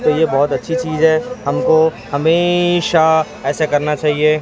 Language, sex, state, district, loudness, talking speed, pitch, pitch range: Hindi, male, Chhattisgarh, Raipur, -15 LUFS, 135 wpm, 160 Hz, 150-165 Hz